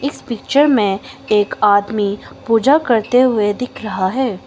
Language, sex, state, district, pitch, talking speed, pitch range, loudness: Hindi, female, Arunachal Pradesh, Longding, 225 Hz, 145 wpm, 205-260 Hz, -16 LUFS